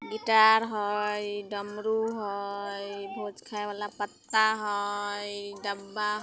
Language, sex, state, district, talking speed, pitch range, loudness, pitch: Bajjika, female, Bihar, Vaishali, 105 wpm, 205-215 Hz, -29 LUFS, 205 Hz